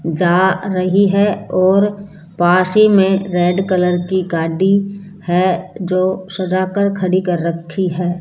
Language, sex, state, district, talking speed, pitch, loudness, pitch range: Hindi, female, Rajasthan, Jaipur, 140 wpm, 185 Hz, -15 LUFS, 180-195 Hz